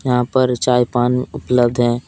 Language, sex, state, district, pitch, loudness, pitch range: Hindi, male, Jharkhand, Deoghar, 125 Hz, -17 LUFS, 120-125 Hz